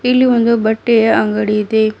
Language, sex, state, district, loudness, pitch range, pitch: Kannada, female, Karnataka, Bidar, -13 LUFS, 215-235 Hz, 220 Hz